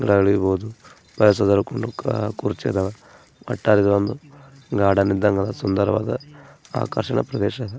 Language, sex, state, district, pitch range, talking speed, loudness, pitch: Kannada, male, Karnataka, Gulbarga, 100-125 Hz, 70 wpm, -21 LUFS, 105 Hz